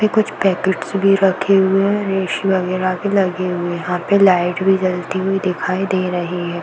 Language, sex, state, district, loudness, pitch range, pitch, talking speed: Hindi, female, Uttar Pradesh, Varanasi, -17 LUFS, 180-195 Hz, 190 Hz, 210 wpm